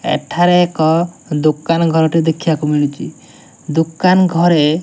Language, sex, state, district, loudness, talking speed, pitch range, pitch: Odia, male, Odisha, Nuapada, -14 LUFS, 110 wpm, 155-175 Hz, 160 Hz